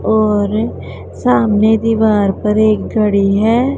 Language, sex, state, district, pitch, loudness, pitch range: Hindi, male, Punjab, Pathankot, 210 Hz, -13 LUFS, 200-220 Hz